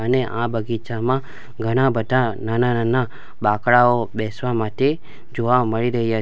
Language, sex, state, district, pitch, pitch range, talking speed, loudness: Gujarati, male, Gujarat, Valsad, 120 Hz, 115-125 Hz, 125 wpm, -20 LUFS